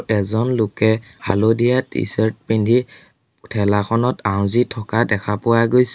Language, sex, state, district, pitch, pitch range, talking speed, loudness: Assamese, male, Assam, Sonitpur, 110 Hz, 105-120 Hz, 110 wpm, -18 LUFS